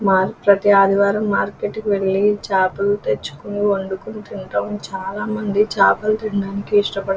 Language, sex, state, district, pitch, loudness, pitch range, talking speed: Telugu, female, Andhra Pradesh, Krishna, 200 Hz, -19 LUFS, 195-210 Hz, 125 wpm